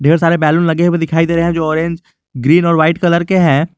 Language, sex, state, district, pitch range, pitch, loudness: Hindi, male, Jharkhand, Garhwa, 160-170 Hz, 165 Hz, -13 LUFS